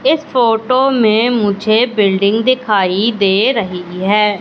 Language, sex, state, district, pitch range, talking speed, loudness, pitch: Hindi, female, Madhya Pradesh, Katni, 200-240 Hz, 120 wpm, -13 LUFS, 215 Hz